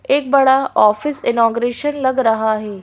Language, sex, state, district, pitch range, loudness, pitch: Hindi, female, Madhya Pradesh, Bhopal, 220-275 Hz, -15 LUFS, 245 Hz